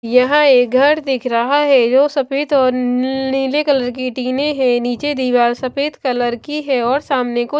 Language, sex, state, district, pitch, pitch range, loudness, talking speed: Hindi, female, Maharashtra, Washim, 260 Hz, 250-280 Hz, -15 LUFS, 190 wpm